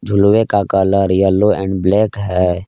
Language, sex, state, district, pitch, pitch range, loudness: Hindi, male, Jharkhand, Palamu, 100 Hz, 95-105 Hz, -14 LUFS